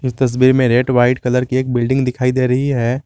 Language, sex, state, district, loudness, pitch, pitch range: Hindi, male, Jharkhand, Garhwa, -15 LUFS, 125 Hz, 125-130 Hz